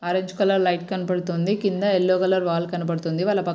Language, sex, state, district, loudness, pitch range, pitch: Telugu, female, Andhra Pradesh, Srikakulam, -22 LUFS, 175-190 Hz, 185 Hz